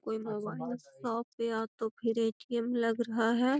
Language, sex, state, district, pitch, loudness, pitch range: Magahi, female, Bihar, Gaya, 230 Hz, -33 LUFS, 225-235 Hz